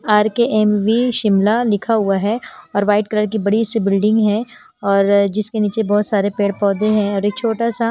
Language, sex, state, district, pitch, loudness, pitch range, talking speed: Hindi, female, Himachal Pradesh, Shimla, 210 Hz, -17 LUFS, 205-225 Hz, 190 wpm